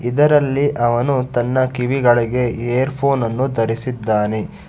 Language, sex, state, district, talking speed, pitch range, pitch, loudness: Kannada, male, Karnataka, Bangalore, 90 wpm, 120-135 Hz, 125 Hz, -17 LUFS